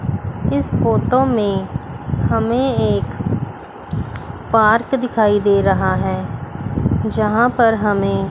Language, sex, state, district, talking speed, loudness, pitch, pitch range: Hindi, female, Chandigarh, Chandigarh, 95 wpm, -17 LUFS, 205 Hz, 190-230 Hz